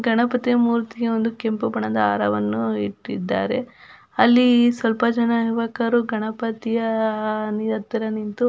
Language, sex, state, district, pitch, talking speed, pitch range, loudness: Kannada, female, Karnataka, Belgaum, 225 Hz, 105 wpm, 215-235 Hz, -21 LUFS